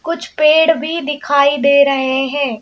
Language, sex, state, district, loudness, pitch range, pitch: Hindi, female, Madhya Pradesh, Bhopal, -13 LUFS, 280-315 Hz, 285 Hz